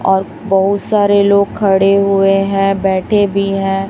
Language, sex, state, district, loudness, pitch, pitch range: Hindi, female, Chhattisgarh, Raipur, -13 LUFS, 195 Hz, 195-200 Hz